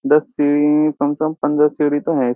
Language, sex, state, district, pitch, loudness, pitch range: Hindi, male, Uttar Pradesh, Jyotiba Phule Nagar, 150 Hz, -17 LUFS, 145-150 Hz